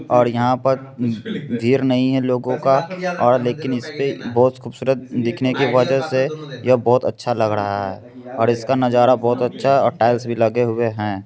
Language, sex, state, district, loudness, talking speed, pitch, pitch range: Hindi, male, Bihar, Begusarai, -18 LUFS, 185 wpm, 125 Hz, 120-130 Hz